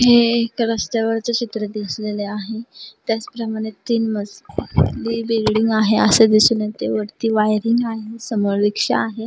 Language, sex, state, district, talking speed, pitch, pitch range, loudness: Marathi, female, Maharashtra, Nagpur, 135 wpm, 220 Hz, 215-230 Hz, -19 LUFS